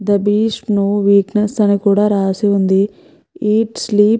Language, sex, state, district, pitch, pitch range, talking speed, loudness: Telugu, female, Andhra Pradesh, Krishna, 205 Hz, 200-210 Hz, 155 wpm, -15 LUFS